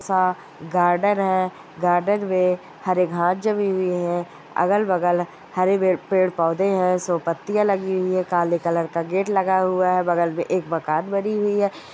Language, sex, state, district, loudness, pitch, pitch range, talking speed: Hindi, female, Goa, North and South Goa, -21 LUFS, 185 Hz, 175-190 Hz, 175 wpm